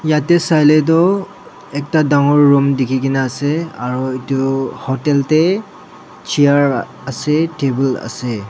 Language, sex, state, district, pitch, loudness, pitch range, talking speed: Nagamese, male, Nagaland, Dimapur, 145 Hz, -15 LUFS, 135-155 Hz, 125 wpm